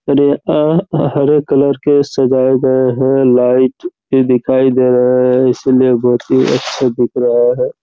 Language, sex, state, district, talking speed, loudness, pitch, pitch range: Hindi, male, Chhattisgarh, Raigarh, 160 wpm, -12 LUFS, 130 Hz, 130-145 Hz